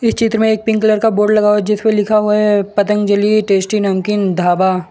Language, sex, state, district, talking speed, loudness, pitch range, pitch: Hindi, male, Gujarat, Valsad, 245 wpm, -13 LUFS, 200-215 Hz, 210 Hz